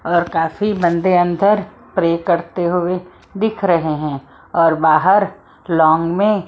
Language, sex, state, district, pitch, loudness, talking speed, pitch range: Hindi, female, Maharashtra, Mumbai Suburban, 175 Hz, -16 LUFS, 130 wpm, 165-195 Hz